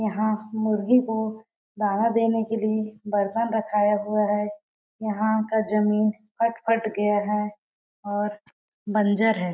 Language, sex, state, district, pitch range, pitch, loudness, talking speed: Hindi, female, Chhattisgarh, Balrampur, 210-220 Hz, 215 Hz, -24 LUFS, 125 wpm